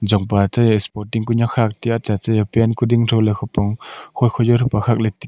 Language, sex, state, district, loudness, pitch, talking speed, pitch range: Wancho, male, Arunachal Pradesh, Longding, -18 LUFS, 115 Hz, 225 wpm, 105-115 Hz